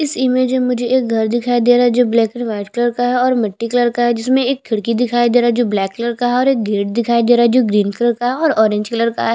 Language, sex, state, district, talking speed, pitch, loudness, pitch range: Hindi, female, Chhattisgarh, Jashpur, 320 wpm, 240 Hz, -15 LUFS, 230-245 Hz